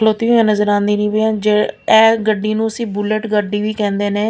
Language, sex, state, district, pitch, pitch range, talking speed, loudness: Punjabi, female, Punjab, Pathankot, 215 Hz, 210-220 Hz, 155 wpm, -15 LUFS